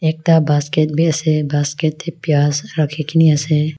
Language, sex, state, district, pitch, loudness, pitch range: Nagamese, female, Nagaland, Kohima, 155 Hz, -16 LUFS, 150-160 Hz